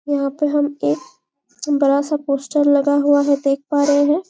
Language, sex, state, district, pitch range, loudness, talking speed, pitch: Hindi, female, Chhattisgarh, Bastar, 280-290 Hz, -17 LUFS, 180 wpm, 285 Hz